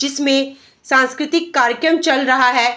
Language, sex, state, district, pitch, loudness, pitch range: Hindi, female, Bihar, Bhagalpur, 275 Hz, -15 LUFS, 255-300 Hz